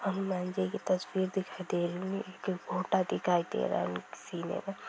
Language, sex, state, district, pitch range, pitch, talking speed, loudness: Hindi, female, Bihar, Sitamarhi, 175-190 Hz, 185 Hz, 210 wpm, -33 LUFS